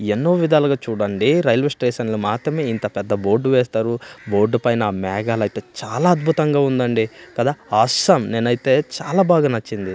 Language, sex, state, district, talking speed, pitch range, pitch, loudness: Telugu, male, Andhra Pradesh, Manyam, 135 wpm, 105-145 Hz, 120 Hz, -19 LUFS